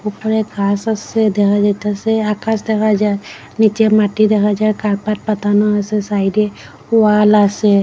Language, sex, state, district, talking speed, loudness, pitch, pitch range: Bengali, female, Assam, Hailakandi, 140 wpm, -15 LUFS, 210 Hz, 205-215 Hz